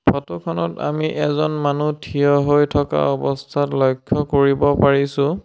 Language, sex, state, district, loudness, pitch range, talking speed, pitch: Assamese, male, Assam, Sonitpur, -19 LUFS, 130-150 Hz, 130 wpm, 145 Hz